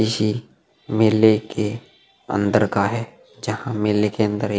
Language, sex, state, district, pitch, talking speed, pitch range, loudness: Hindi, male, Uttar Pradesh, Jalaun, 105 Hz, 155 wpm, 105-110 Hz, -21 LUFS